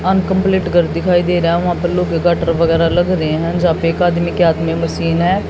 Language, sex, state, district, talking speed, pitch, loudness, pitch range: Hindi, female, Haryana, Jhajjar, 240 wpm, 175 Hz, -15 LUFS, 165-180 Hz